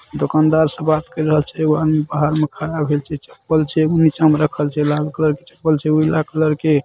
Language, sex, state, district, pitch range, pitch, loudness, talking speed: Maithili, male, Bihar, Saharsa, 150-155 Hz, 155 Hz, -17 LUFS, 245 wpm